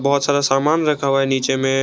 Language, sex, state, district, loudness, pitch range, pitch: Hindi, male, Jharkhand, Garhwa, -17 LUFS, 135-145 Hz, 140 Hz